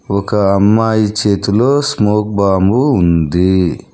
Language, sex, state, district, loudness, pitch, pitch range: Telugu, male, Telangana, Hyderabad, -13 LUFS, 100 Hz, 95-110 Hz